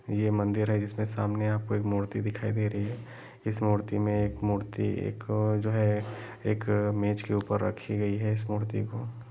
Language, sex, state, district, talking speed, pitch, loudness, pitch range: Hindi, male, Jharkhand, Jamtara, 195 wpm, 105 Hz, -30 LUFS, 105-110 Hz